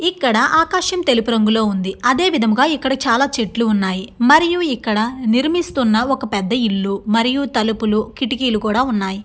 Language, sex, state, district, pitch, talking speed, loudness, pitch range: Telugu, female, Andhra Pradesh, Guntur, 235 Hz, 145 wpm, -17 LUFS, 215-275 Hz